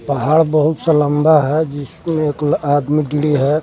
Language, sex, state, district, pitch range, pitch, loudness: Hindi, male, Jharkhand, Garhwa, 145-155 Hz, 150 Hz, -15 LUFS